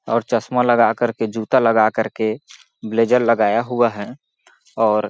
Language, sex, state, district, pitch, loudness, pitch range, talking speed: Hindi, male, Chhattisgarh, Balrampur, 115 Hz, -18 LUFS, 110-120 Hz, 165 wpm